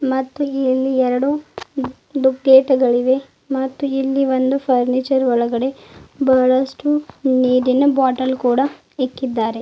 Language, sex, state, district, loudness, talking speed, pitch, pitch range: Kannada, female, Karnataka, Bidar, -17 LUFS, 80 wpm, 265 Hz, 255-275 Hz